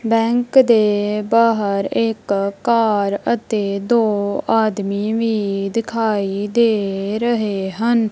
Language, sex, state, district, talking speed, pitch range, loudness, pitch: Punjabi, female, Punjab, Kapurthala, 95 wpm, 200-230 Hz, -18 LUFS, 215 Hz